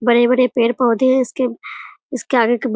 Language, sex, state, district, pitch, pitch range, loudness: Hindi, female, Bihar, Muzaffarpur, 250 Hz, 240-260 Hz, -16 LUFS